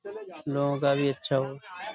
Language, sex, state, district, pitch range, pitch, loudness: Hindi, male, Uttar Pradesh, Budaun, 140-145 Hz, 140 Hz, -28 LUFS